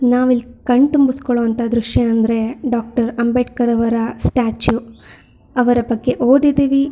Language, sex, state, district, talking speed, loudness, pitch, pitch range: Kannada, female, Karnataka, Shimoga, 105 wpm, -16 LUFS, 245 Hz, 230-255 Hz